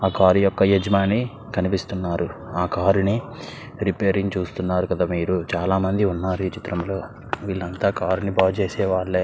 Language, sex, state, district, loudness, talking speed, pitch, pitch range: Telugu, male, Andhra Pradesh, Krishna, -22 LUFS, 155 wpm, 95 Hz, 90-100 Hz